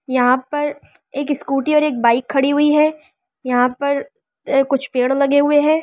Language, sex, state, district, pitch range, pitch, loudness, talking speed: Hindi, female, Delhi, New Delhi, 260-295 Hz, 280 Hz, -17 LUFS, 185 wpm